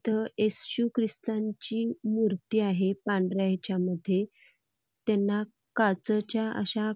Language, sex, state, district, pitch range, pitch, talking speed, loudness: Marathi, female, Karnataka, Belgaum, 195-220 Hz, 215 Hz, 80 wpm, -29 LUFS